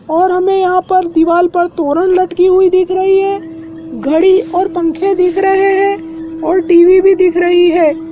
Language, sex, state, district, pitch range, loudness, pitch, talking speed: Hindi, male, Madhya Pradesh, Dhar, 330-375 Hz, -11 LUFS, 360 Hz, 175 wpm